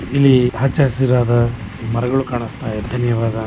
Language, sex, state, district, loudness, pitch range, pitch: Kannada, male, Karnataka, Chamarajanagar, -17 LUFS, 115-130 Hz, 120 Hz